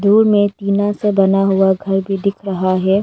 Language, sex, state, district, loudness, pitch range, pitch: Hindi, female, Arunachal Pradesh, Lower Dibang Valley, -15 LUFS, 195-205 Hz, 195 Hz